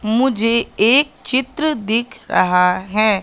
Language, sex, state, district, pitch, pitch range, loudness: Hindi, female, Madhya Pradesh, Katni, 230 Hz, 215-260 Hz, -16 LUFS